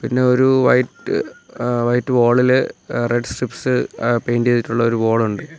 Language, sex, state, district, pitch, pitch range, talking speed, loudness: Malayalam, male, Kerala, Kollam, 120 Hz, 120-125 Hz, 160 wpm, -17 LUFS